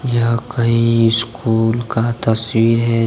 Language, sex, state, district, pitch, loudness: Hindi, male, Jharkhand, Deoghar, 115 Hz, -16 LUFS